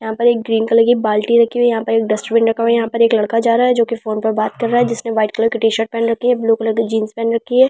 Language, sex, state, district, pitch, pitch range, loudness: Hindi, female, Delhi, New Delhi, 230 Hz, 225-235 Hz, -15 LUFS